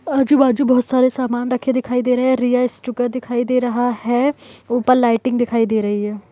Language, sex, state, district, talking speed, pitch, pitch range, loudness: Hindi, female, Bihar, Kishanganj, 200 wpm, 250 Hz, 240-255 Hz, -17 LUFS